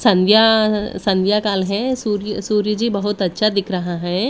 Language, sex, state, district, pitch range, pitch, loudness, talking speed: Hindi, female, Delhi, New Delhi, 195-215 Hz, 205 Hz, -17 LUFS, 165 wpm